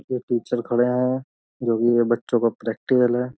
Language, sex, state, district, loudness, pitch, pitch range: Hindi, male, Uttar Pradesh, Jyotiba Phule Nagar, -22 LUFS, 120 Hz, 120-125 Hz